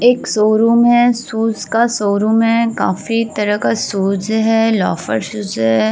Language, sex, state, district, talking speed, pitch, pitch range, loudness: Hindi, female, Uttar Pradesh, Varanasi, 150 wpm, 220 Hz, 195-230 Hz, -15 LUFS